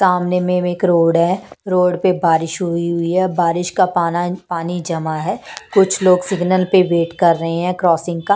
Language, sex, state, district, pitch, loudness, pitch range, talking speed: Hindi, female, Punjab, Pathankot, 175 Hz, -16 LUFS, 170-185 Hz, 195 wpm